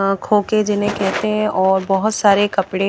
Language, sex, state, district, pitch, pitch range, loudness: Hindi, female, Haryana, Charkhi Dadri, 205 Hz, 195-215 Hz, -17 LUFS